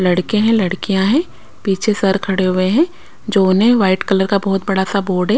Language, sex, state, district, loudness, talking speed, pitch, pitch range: Hindi, female, Bihar, Kaimur, -16 LUFS, 210 wpm, 195 Hz, 190-215 Hz